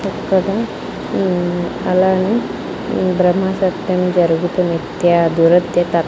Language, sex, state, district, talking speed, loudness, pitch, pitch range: Telugu, female, Andhra Pradesh, Sri Satya Sai, 90 wpm, -16 LUFS, 180 Hz, 175-190 Hz